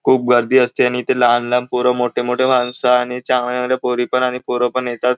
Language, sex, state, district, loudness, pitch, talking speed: Marathi, male, Maharashtra, Nagpur, -16 LUFS, 125 Hz, 220 wpm